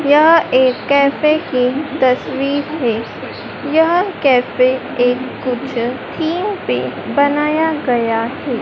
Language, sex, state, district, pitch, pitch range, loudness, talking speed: Hindi, female, Madhya Pradesh, Dhar, 280 Hz, 250-305 Hz, -16 LUFS, 105 wpm